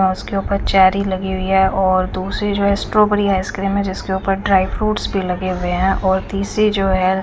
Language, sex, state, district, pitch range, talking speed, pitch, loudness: Hindi, female, Chandigarh, Chandigarh, 190-200 Hz, 225 wpm, 190 Hz, -17 LUFS